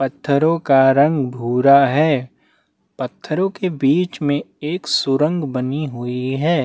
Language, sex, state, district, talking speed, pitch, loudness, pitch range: Hindi, male, Chhattisgarh, Bastar, 125 wpm, 145 Hz, -18 LUFS, 135-160 Hz